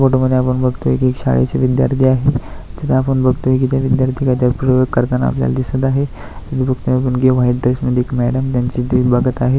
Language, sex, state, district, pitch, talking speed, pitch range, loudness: Marathi, male, Maharashtra, Aurangabad, 130 Hz, 170 wpm, 125-130 Hz, -15 LUFS